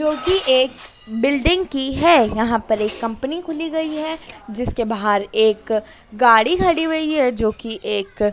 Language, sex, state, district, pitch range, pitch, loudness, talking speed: Hindi, female, Madhya Pradesh, Dhar, 220-315 Hz, 245 Hz, -18 LUFS, 160 wpm